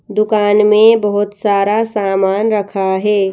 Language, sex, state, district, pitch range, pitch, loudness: Hindi, female, Madhya Pradesh, Bhopal, 200-210 Hz, 205 Hz, -13 LUFS